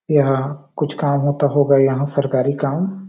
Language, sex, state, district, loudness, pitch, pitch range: Hindi, male, Chhattisgarh, Balrampur, -18 LUFS, 140 Hz, 140-145 Hz